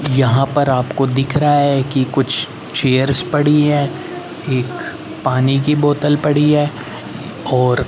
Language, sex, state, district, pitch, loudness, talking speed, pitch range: Hindi, male, Haryana, Rohtak, 140 Hz, -15 LUFS, 135 wpm, 130-145 Hz